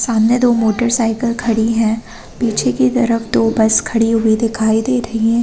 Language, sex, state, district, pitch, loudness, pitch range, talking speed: Hindi, female, Chhattisgarh, Balrampur, 225 Hz, -15 LUFS, 220-235 Hz, 175 wpm